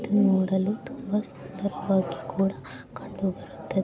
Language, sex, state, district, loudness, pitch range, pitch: Kannada, male, Karnataka, Bijapur, -27 LUFS, 170-205 Hz, 190 Hz